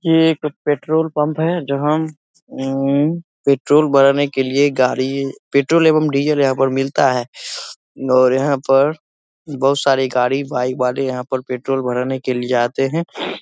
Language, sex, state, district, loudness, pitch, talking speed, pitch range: Hindi, male, Bihar, Begusarai, -17 LUFS, 135 Hz, 160 wpm, 130-150 Hz